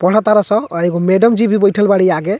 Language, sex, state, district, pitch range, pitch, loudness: Bhojpuri, male, Bihar, Muzaffarpur, 185-215 Hz, 200 Hz, -13 LUFS